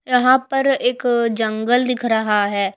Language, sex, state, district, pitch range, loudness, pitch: Hindi, female, Chhattisgarh, Raipur, 220-255 Hz, -17 LUFS, 245 Hz